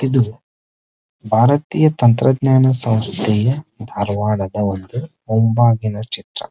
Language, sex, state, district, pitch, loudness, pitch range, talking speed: Kannada, male, Karnataka, Dharwad, 115 Hz, -17 LUFS, 105-130 Hz, 85 wpm